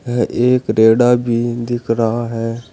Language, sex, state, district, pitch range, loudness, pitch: Hindi, male, Uttar Pradesh, Saharanpur, 115-120 Hz, -15 LUFS, 120 Hz